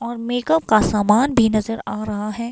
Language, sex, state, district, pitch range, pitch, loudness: Hindi, female, Himachal Pradesh, Shimla, 215-240 Hz, 225 Hz, -19 LUFS